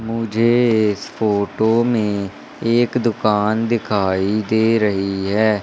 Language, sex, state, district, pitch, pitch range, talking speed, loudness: Hindi, male, Madhya Pradesh, Katni, 110 Hz, 100-115 Hz, 105 wpm, -18 LUFS